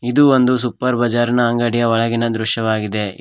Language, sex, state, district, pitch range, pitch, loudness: Kannada, male, Karnataka, Koppal, 115-125 Hz, 120 Hz, -16 LUFS